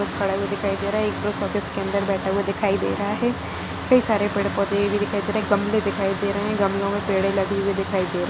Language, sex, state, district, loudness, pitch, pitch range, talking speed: Hindi, female, Chhattisgarh, Bastar, -23 LUFS, 200 Hz, 195-205 Hz, 290 wpm